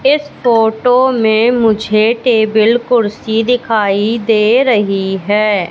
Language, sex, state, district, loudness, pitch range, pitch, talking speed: Hindi, female, Madhya Pradesh, Katni, -12 LUFS, 215-245 Hz, 225 Hz, 105 wpm